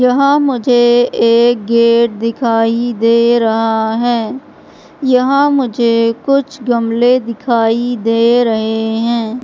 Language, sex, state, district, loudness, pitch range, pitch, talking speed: Hindi, female, Madhya Pradesh, Katni, -12 LUFS, 230-250 Hz, 235 Hz, 100 wpm